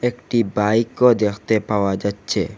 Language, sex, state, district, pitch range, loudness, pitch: Bengali, male, Assam, Hailakandi, 100-120 Hz, -19 LUFS, 110 Hz